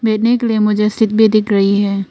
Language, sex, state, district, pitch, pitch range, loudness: Hindi, female, Arunachal Pradesh, Papum Pare, 215 Hz, 205-220 Hz, -13 LUFS